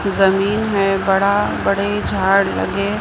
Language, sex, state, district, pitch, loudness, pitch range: Hindi, female, Maharashtra, Mumbai Suburban, 200 Hz, -17 LUFS, 195-200 Hz